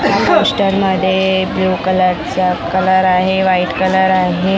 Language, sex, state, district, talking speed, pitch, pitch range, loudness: Marathi, female, Maharashtra, Mumbai Suburban, 130 wpm, 190 Hz, 185-190 Hz, -13 LUFS